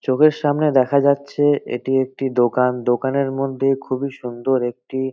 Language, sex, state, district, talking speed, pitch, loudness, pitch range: Bengali, male, West Bengal, North 24 Parganas, 140 wpm, 135 Hz, -19 LUFS, 125-140 Hz